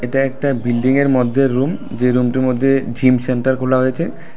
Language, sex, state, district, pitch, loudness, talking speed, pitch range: Bengali, male, Tripura, West Tripura, 130 Hz, -16 LUFS, 190 wpm, 125-135 Hz